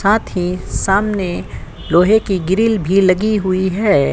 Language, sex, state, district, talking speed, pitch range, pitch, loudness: Hindi, female, Uttar Pradesh, Jyotiba Phule Nagar, 145 wpm, 185-210 Hz, 195 Hz, -15 LUFS